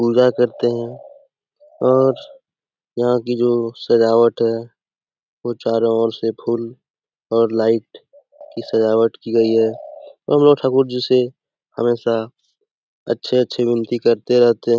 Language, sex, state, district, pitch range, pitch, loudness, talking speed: Hindi, male, Bihar, Jamui, 115-130 Hz, 120 Hz, -17 LUFS, 140 wpm